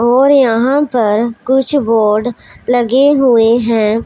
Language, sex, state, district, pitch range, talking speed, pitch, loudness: Hindi, female, Punjab, Pathankot, 225-265 Hz, 120 wpm, 240 Hz, -11 LUFS